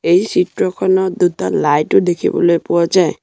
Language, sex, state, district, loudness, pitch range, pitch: Assamese, male, Assam, Sonitpur, -15 LUFS, 170-185 Hz, 180 Hz